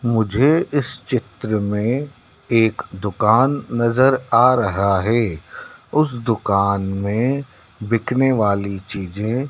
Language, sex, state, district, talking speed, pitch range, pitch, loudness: Hindi, male, Madhya Pradesh, Dhar, 100 wpm, 100-130 Hz, 115 Hz, -19 LUFS